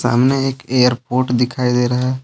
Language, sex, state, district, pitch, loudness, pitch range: Hindi, male, Jharkhand, Deoghar, 125 Hz, -16 LUFS, 125-130 Hz